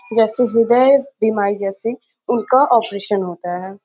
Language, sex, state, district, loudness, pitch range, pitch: Hindi, female, Uttar Pradesh, Varanasi, -17 LUFS, 200-245 Hz, 220 Hz